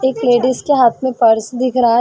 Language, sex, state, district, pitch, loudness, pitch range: Hindi, female, Uttar Pradesh, Jalaun, 245 Hz, -14 LUFS, 235-260 Hz